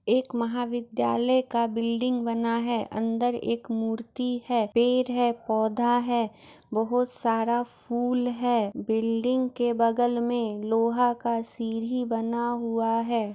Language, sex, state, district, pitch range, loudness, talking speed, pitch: Maithili, female, Bihar, Muzaffarpur, 230-245 Hz, -26 LUFS, 125 wpm, 235 Hz